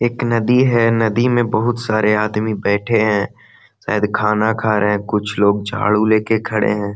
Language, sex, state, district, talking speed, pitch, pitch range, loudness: Hindi, male, Bihar, Gaya, 180 wpm, 110 Hz, 105-115 Hz, -16 LUFS